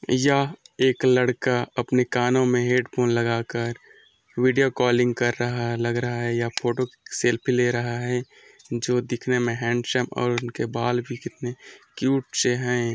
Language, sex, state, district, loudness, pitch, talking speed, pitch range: Hindi, male, Chhattisgarh, Korba, -24 LUFS, 120 Hz, 155 wpm, 120-125 Hz